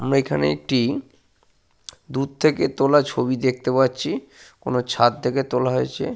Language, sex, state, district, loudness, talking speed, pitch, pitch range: Bengali, male, Jharkhand, Sahebganj, -21 LUFS, 135 wpm, 130 Hz, 125-135 Hz